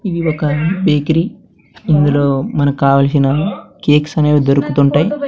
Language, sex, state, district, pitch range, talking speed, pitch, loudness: Telugu, male, Andhra Pradesh, Sri Satya Sai, 140-165 Hz, 90 wpm, 150 Hz, -14 LUFS